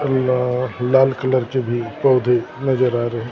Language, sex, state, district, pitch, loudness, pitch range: Hindi, male, Maharashtra, Gondia, 125 Hz, -18 LUFS, 120-130 Hz